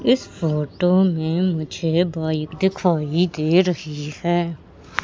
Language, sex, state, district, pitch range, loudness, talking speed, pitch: Hindi, female, Madhya Pradesh, Katni, 155-180 Hz, -21 LUFS, 105 wpm, 165 Hz